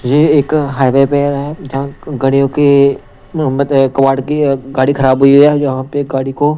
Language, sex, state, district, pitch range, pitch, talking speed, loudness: Hindi, male, Punjab, Pathankot, 135-145 Hz, 140 Hz, 165 wpm, -12 LUFS